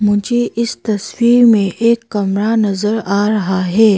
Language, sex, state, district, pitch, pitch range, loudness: Hindi, female, Arunachal Pradesh, Papum Pare, 215 Hz, 205-230 Hz, -14 LUFS